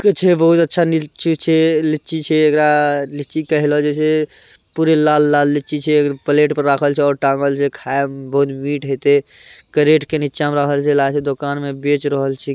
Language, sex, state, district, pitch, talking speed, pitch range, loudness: Hindi, male, Bihar, Araria, 145 Hz, 210 wpm, 140-155 Hz, -16 LUFS